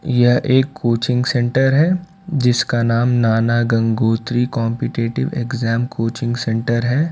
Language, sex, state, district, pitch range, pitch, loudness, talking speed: Hindi, male, Karnataka, Bangalore, 115-130 Hz, 120 Hz, -17 LUFS, 120 wpm